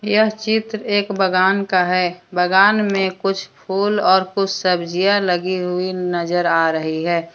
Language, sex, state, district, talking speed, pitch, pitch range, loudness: Hindi, female, Jharkhand, Deoghar, 155 wpm, 185 Hz, 180-200 Hz, -18 LUFS